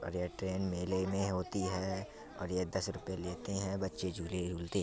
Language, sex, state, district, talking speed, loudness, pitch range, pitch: Bundeli, male, Uttar Pradesh, Budaun, 210 wpm, -38 LUFS, 90-95 Hz, 95 Hz